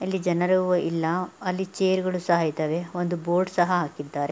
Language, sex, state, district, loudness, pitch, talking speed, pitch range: Kannada, female, Karnataka, Mysore, -25 LUFS, 175 Hz, 165 wpm, 165-185 Hz